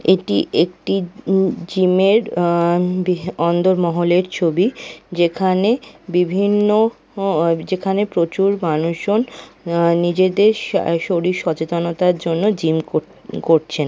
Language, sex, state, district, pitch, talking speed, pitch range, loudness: Bengali, female, West Bengal, Kolkata, 180 Hz, 95 wpm, 170-195 Hz, -18 LUFS